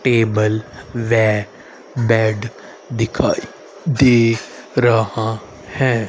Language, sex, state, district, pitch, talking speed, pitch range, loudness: Hindi, male, Haryana, Rohtak, 115 Hz, 70 wpm, 110-125 Hz, -17 LUFS